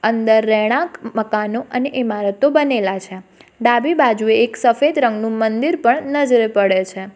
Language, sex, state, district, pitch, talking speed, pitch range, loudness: Gujarati, female, Gujarat, Valsad, 225 Hz, 140 wpm, 210-250 Hz, -16 LUFS